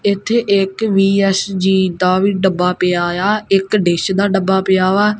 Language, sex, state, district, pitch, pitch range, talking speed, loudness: Punjabi, female, Punjab, Kapurthala, 195 Hz, 185-200 Hz, 160 wpm, -15 LUFS